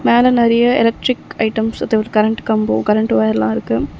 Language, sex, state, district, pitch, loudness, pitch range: Tamil, female, Tamil Nadu, Chennai, 220 Hz, -15 LUFS, 215-235 Hz